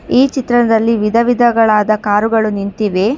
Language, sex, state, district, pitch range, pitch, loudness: Kannada, female, Karnataka, Bangalore, 210-240 Hz, 225 Hz, -13 LUFS